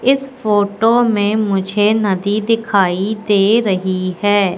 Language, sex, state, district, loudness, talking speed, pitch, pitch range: Hindi, female, Madhya Pradesh, Katni, -15 LUFS, 120 wpm, 205 Hz, 195-220 Hz